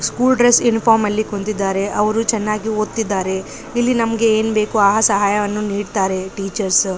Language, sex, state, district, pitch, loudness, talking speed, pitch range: Kannada, female, Karnataka, Raichur, 210 Hz, -17 LUFS, 145 wpm, 200-225 Hz